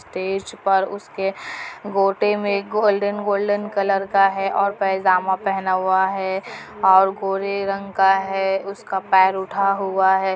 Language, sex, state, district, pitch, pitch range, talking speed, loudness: Hindi, female, Bihar, Kishanganj, 195 Hz, 190-200 Hz, 145 wpm, -20 LUFS